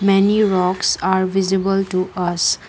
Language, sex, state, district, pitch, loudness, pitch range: English, female, Assam, Kamrup Metropolitan, 190 Hz, -17 LUFS, 180-195 Hz